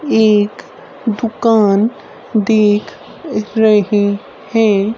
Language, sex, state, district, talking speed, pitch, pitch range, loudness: Hindi, female, Haryana, Rohtak, 60 wpm, 215 Hz, 210-225 Hz, -14 LUFS